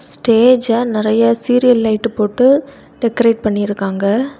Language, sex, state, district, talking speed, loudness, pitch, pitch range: Tamil, female, Tamil Nadu, Kanyakumari, 95 wpm, -14 LUFS, 230 Hz, 215-245 Hz